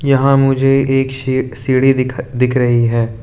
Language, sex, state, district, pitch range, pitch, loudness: Hindi, male, Arunachal Pradesh, Lower Dibang Valley, 125-135 Hz, 130 Hz, -14 LUFS